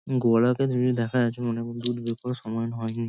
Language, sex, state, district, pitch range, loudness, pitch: Bengali, male, West Bengal, Kolkata, 115-125 Hz, -26 LUFS, 120 Hz